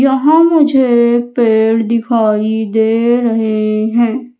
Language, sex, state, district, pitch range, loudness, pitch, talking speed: Hindi, female, Madhya Pradesh, Umaria, 220-245 Hz, -12 LUFS, 235 Hz, 95 wpm